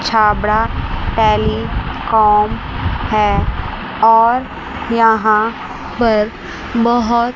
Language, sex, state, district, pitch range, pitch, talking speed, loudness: Hindi, female, Chandigarh, Chandigarh, 215-235 Hz, 225 Hz, 55 wpm, -15 LUFS